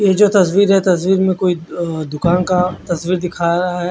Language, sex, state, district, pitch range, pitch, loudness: Hindi, male, Odisha, Khordha, 175-190 Hz, 180 Hz, -15 LUFS